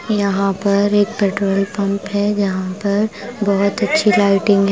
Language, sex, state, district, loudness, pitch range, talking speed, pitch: Hindi, female, Himachal Pradesh, Shimla, -17 LUFS, 195-205 Hz, 155 wpm, 200 Hz